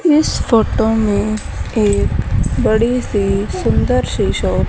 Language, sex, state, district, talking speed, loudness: Hindi, female, Haryana, Charkhi Dadri, 130 wpm, -16 LUFS